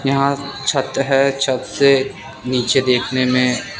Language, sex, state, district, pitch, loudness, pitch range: Hindi, male, Bihar, West Champaran, 135 Hz, -17 LUFS, 125-135 Hz